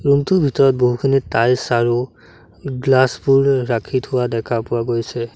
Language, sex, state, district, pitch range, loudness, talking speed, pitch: Assamese, male, Assam, Sonitpur, 115-135 Hz, -17 LUFS, 135 wpm, 125 Hz